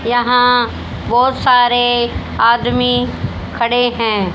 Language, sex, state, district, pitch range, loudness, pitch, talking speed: Hindi, female, Haryana, Jhajjar, 175-245 Hz, -14 LUFS, 235 Hz, 85 wpm